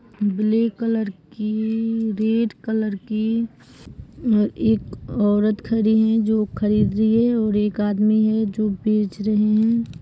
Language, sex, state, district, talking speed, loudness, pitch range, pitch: Hindi, female, Bihar, Saran, 140 wpm, -21 LUFS, 210-225 Hz, 215 Hz